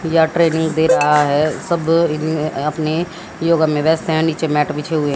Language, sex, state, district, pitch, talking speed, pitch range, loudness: Hindi, female, Haryana, Jhajjar, 160 Hz, 185 wpm, 150-165 Hz, -16 LUFS